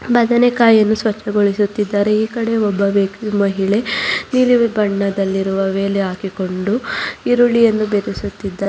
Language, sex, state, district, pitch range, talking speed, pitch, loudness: Kannada, female, Karnataka, Bangalore, 195-230 Hz, 90 wpm, 205 Hz, -16 LUFS